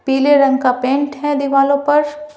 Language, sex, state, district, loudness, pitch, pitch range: Hindi, female, Bihar, Patna, -14 LUFS, 280 Hz, 270-290 Hz